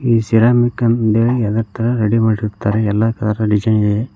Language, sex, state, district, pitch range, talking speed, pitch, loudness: Kannada, male, Karnataka, Koppal, 105-115 Hz, 175 wpm, 110 Hz, -15 LUFS